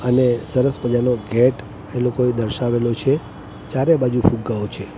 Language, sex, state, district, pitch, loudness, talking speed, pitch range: Gujarati, male, Gujarat, Gandhinagar, 120 Hz, -19 LUFS, 145 wpm, 110-125 Hz